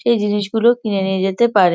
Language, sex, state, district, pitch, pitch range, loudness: Bengali, female, West Bengal, Kolkata, 205 Hz, 195-235 Hz, -17 LUFS